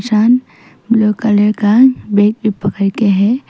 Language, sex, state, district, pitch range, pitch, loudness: Hindi, female, Arunachal Pradesh, Papum Pare, 205-230 Hz, 215 Hz, -12 LUFS